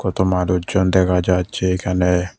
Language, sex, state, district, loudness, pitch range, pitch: Bengali, male, Tripura, West Tripura, -18 LUFS, 90-95 Hz, 90 Hz